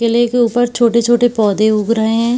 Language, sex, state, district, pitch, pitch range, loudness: Hindi, female, Bihar, Purnia, 235 Hz, 225-240 Hz, -13 LUFS